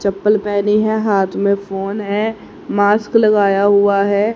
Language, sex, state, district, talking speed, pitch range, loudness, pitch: Hindi, female, Haryana, Jhajjar, 150 wpm, 200-210 Hz, -15 LUFS, 205 Hz